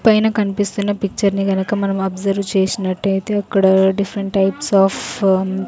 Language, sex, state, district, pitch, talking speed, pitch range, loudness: Telugu, female, Andhra Pradesh, Sri Satya Sai, 195 Hz, 135 wpm, 190-205 Hz, -17 LUFS